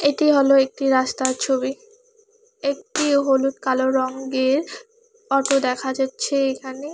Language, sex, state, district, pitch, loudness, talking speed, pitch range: Bengali, female, West Bengal, Alipurduar, 275 Hz, -20 LUFS, 110 wpm, 265-300 Hz